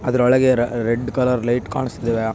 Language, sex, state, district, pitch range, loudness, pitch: Kannada, male, Karnataka, Bellary, 115-125 Hz, -19 LUFS, 120 Hz